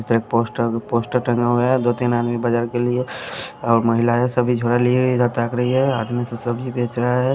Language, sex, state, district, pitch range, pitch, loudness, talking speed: Hindi, male, Punjab, Kapurthala, 120-125 Hz, 120 Hz, -20 LUFS, 230 wpm